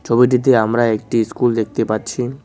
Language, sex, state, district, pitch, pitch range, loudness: Bengali, male, West Bengal, Cooch Behar, 115 Hz, 110-125 Hz, -16 LUFS